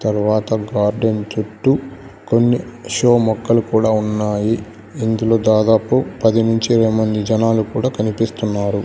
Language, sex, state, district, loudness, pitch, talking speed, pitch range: Telugu, male, Andhra Pradesh, Sri Satya Sai, -17 LUFS, 110 Hz, 115 wpm, 105-115 Hz